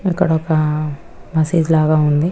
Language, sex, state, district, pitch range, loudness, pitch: Telugu, female, Telangana, Karimnagar, 155-170 Hz, -16 LUFS, 160 Hz